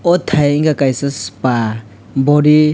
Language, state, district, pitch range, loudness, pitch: Kokborok, Tripura, West Tripura, 115-150 Hz, -14 LUFS, 140 Hz